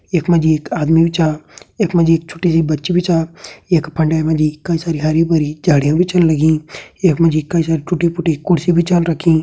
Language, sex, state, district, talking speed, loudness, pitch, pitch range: Garhwali, male, Uttarakhand, Tehri Garhwal, 250 wpm, -15 LUFS, 165 Hz, 155-170 Hz